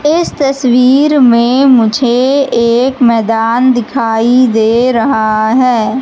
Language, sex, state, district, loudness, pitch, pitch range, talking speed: Hindi, female, Madhya Pradesh, Katni, -9 LUFS, 245 Hz, 230-265 Hz, 100 wpm